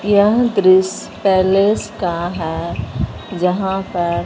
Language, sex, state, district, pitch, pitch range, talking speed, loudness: Hindi, male, Punjab, Fazilka, 190 Hz, 175-200 Hz, 100 wpm, -17 LUFS